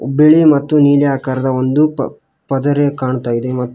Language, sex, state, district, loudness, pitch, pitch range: Kannada, male, Karnataka, Koppal, -14 LUFS, 140 Hz, 130-150 Hz